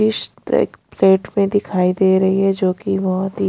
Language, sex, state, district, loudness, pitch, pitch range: Hindi, female, Punjab, Pathankot, -17 LUFS, 195 Hz, 190-195 Hz